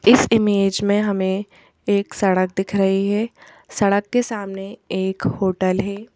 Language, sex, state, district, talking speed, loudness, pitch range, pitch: Hindi, female, Madhya Pradesh, Bhopal, 145 wpm, -20 LUFS, 190-205 Hz, 200 Hz